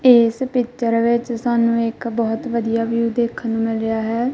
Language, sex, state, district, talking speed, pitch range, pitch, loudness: Punjabi, female, Punjab, Kapurthala, 180 wpm, 230-240 Hz, 230 Hz, -19 LUFS